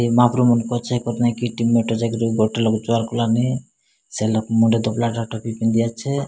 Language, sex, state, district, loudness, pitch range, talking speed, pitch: Odia, male, Odisha, Malkangiri, -20 LUFS, 115-120 Hz, 115 wpm, 115 Hz